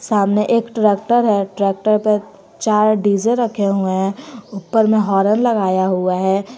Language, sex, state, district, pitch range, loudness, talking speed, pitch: Hindi, female, Jharkhand, Garhwa, 195-220 Hz, -16 LUFS, 165 wpm, 210 Hz